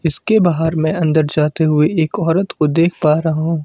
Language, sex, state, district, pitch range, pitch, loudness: Hindi, male, Himachal Pradesh, Shimla, 155-165 Hz, 160 Hz, -15 LUFS